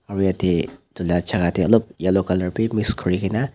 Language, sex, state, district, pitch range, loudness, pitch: Nagamese, male, Nagaland, Dimapur, 90-110 Hz, -21 LUFS, 95 Hz